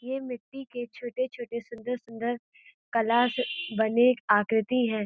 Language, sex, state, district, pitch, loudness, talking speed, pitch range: Hindi, female, Uttar Pradesh, Gorakhpur, 240 Hz, -28 LUFS, 120 wpm, 230-250 Hz